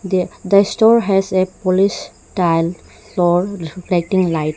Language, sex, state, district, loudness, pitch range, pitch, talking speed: English, female, Arunachal Pradesh, Lower Dibang Valley, -16 LUFS, 175-195 Hz, 185 Hz, 120 wpm